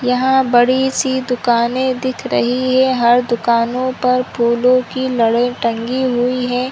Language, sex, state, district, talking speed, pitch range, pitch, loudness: Hindi, female, Chhattisgarh, Korba, 145 wpm, 240-255 Hz, 250 Hz, -15 LUFS